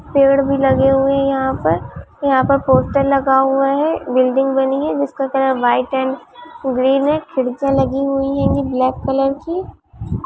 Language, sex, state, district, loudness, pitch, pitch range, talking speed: Hindi, female, Bihar, Vaishali, -16 LUFS, 270 Hz, 265-275 Hz, 170 wpm